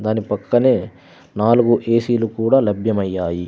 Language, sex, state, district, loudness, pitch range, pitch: Telugu, male, Andhra Pradesh, Sri Satya Sai, -17 LUFS, 105-120 Hz, 115 Hz